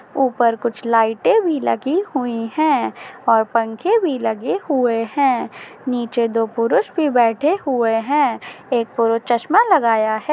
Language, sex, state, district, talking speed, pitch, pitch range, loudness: Hindi, female, Maharashtra, Dhule, 145 wpm, 245 Hz, 230-300 Hz, -18 LUFS